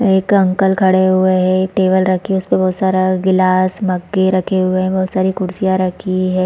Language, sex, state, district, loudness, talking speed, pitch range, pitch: Hindi, female, Chhattisgarh, Bastar, -14 LUFS, 205 wpm, 185-190 Hz, 185 Hz